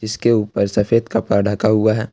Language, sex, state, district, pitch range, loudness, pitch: Hindi, male, Jharkhand, Ranchi, 105-115 Hz, -17 LUFS, 110 Hz